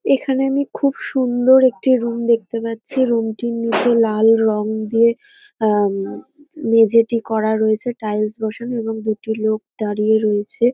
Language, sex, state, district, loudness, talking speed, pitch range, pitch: Bengali, female, West Bengal, North 24 Parganas, -18 LUFS, 150 wpm, 220-245 Hz, 230 Hz